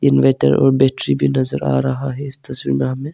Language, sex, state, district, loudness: Hindi, male, Arunachal Pradesh, Longding, -16 LUFS